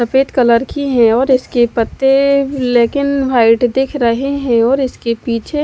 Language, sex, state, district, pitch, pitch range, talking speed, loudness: Hindi, female, Odisha, Malkangiri, 255 Hz, 235-275 Hz, 160 wpm, -13 LUFS